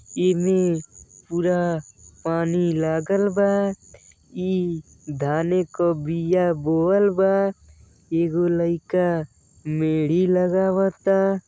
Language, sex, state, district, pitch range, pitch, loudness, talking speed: Bhojpuri, male, Uttar Pradesh, Deoria, 155-185 Hz, 170 Hz, -22 LUFS, 80 wpm